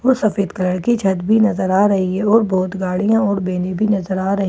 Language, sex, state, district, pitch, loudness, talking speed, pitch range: Hindi, female, Bihar, Katihar, 195 Hz, -17 LUFS, 280 wpm, 185-215 Hz